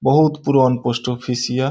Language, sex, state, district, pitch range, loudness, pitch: Maithili, male, Bihar, Saharsa, 125-135 Hz, -18 LUFS, 130 Hz